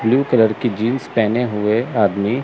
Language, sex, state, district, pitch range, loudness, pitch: Hindi, male, Chandigarh, Chandigarh, 105-125 Hz, -17 LUFS, 115 Hz